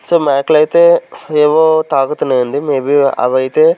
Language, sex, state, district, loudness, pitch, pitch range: Telugu, male, Andhra Pradesh, Sri Satya Sai, -12 LUFS, 150 Hz, 135-160 Hz